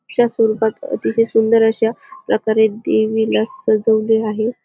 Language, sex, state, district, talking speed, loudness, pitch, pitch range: Marathi, female, Maharashtra, Dhule, 115 wpm, -17 LUFS, 220 Hz, 215-225 Hz